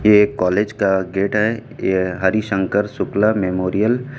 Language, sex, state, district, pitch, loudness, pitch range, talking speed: Hindi, male, Chhattisgarh, Raipur, 105 Hz, -18 LUFS, 95-110 Hz, 170 wpm